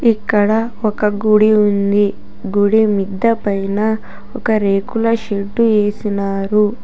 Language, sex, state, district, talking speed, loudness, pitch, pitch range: Telugu, female, Telangana, Hyderabad, 95 wpm, -16 LUFS, 210 Hz, 200-220 Hz